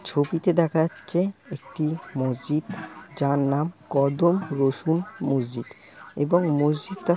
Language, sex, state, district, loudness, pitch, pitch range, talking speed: Bengali, male, West Bengal, Malda, -24 LUFS, 155 Hz, 140-175 Hz, 100 wpm